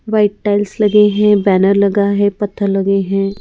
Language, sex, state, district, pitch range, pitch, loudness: Hindi, female, Madhya Pradesh, Bhopal, 195-210 Hz, 205 Hz, -13 LUFS